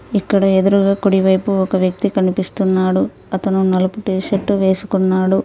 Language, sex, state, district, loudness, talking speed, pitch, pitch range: Telugu, female, Telangana, Mahabubabad, -16 LUFS, 110 wpm, 190 Hz, 185-200 Hz